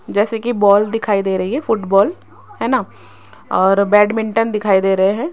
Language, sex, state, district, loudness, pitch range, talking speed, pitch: Hindi, female, Rajasthan, Jaipur, -16 LUFS, 195-225 Hz, 180 wpm, 205 Hz